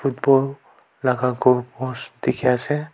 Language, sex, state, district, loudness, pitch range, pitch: Nagamese, male, Nagaland, Kohima, -21 LUFS, 125-135 Hz, 130 Hz